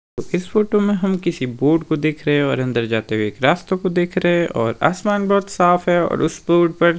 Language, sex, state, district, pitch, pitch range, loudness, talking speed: Hindi, male, Himachal Pradesh, Shimla, 170 Hz, 145-185 Hz, -18 LUFS, 250 wpm